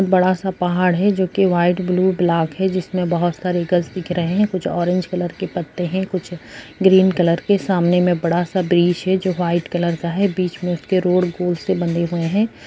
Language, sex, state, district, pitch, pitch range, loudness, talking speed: Hindi, female, Uttarakhand, Uttarkashi, 180 Hz, 175-185 Hz, -18 LUFS, 230 wpm